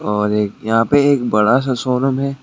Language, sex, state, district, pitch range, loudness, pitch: Hindi, male, West Bengal, Alipurduar, 105-135 Hz, -16 LUFS, 125 Hz